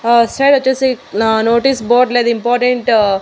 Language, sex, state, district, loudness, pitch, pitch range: Telugu, female, Andhra Pradesh, Annamaya, -13 LUFS, 240 Hz, 230-250 Hz